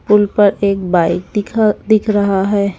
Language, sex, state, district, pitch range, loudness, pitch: Hindi, female, Haryana, Charkhi Dadri, 195-210 Hz, -14 LUFS, 205 Hz